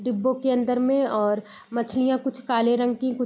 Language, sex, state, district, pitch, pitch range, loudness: Hindi, female, Bihar, Purnia, 250 Hz, 235-260 Hz, -24 LUFS